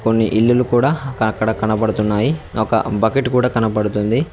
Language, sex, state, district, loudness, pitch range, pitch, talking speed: Telugu, male, Telangana, Mahabubabad, -17 LUFS, 110-125 Hz, 110 Hz, 140 wpm